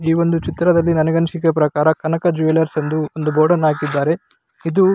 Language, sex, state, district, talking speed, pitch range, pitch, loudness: Kannada, male, Karnataka, Raichur, 155 wpm, 155-170 Hz, 160 Hz, -17 LUFS